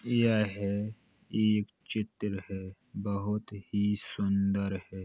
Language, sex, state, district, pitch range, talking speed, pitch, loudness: Hindi, male, Uttar Pradesh, Hamirpur, 100-110 Hz, 105 wpm, 105 Hz, -32 LUFS